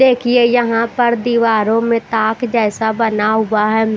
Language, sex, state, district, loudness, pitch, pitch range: Hindi, female, Bihar, West Champaran, -14 LUFS, 230 Hz, 220-240 Hz